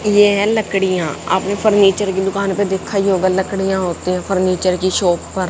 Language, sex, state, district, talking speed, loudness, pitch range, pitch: Hindi, female, Haryana, Jhajjar, 195 wpm, -16 LUFS, 185-200 Hz, 190 Hz